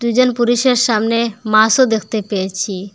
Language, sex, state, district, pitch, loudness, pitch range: Bengali, female, Assam, Hailakandi, 225 Hz, -15 LUFS, 215-240 Hz